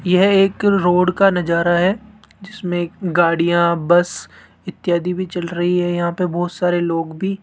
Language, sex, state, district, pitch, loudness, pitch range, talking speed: Hindi, male, Rajasthan, Jaipur, 175 Hz, -17 LUFS, 175-190 Hz, 170 wpm